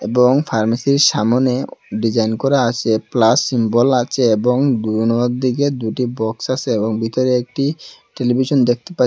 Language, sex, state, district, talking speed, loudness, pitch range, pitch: Bengali, male, Assam, Hailakandi, 130 wpm, -17 LUFS, 115-130 Hz, 125 Hz